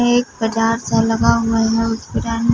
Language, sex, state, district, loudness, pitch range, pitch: Hindi, female, Punjab, Fazilka, -17 LUFS, 225-230 Hz, 225 Hz